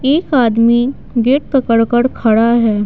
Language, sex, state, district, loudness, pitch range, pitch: Hindi, female, Bihar, Patna, -13 LUFS, 230-260 Hz, 235 Hz